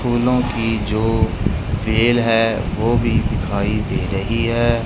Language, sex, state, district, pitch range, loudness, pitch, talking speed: Hindi, male, Punjab, Kapurthala, 105-120 Hz, -18 LUFS, 115 Hz, 135 wpm